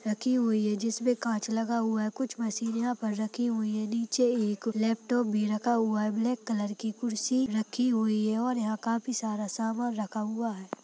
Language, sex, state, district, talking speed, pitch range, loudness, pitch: Hindi, female, Uttarakhand, Tehri Garhwal, 200 wpm, 215-240 Hz, -30 LUFS, 225 Hz